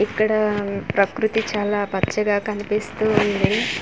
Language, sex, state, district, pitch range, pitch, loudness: Telugu, female, Andhra Pradesh, Manyam, 205-215 Hz, 210 Hz, -21 LUFS